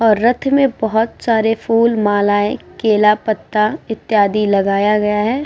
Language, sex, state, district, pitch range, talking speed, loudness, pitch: Hindi, female, Uttar Pradesh, Muzaffarnagar, 210-230 Hz, 145 wpm, -15 LUFS, 220 Hz